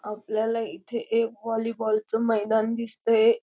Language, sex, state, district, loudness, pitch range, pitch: Marathi, female, Maharashtra, Dhule, -26 LUFS, 220-230 Hz, 225 Hz